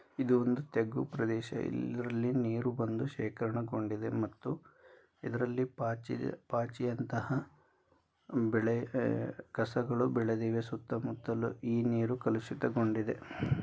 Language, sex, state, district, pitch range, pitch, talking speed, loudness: Kannada, male, Karnataka, Dharwad, 115-125 Hz, 115 Hz, 95 wpm, -35 LUFS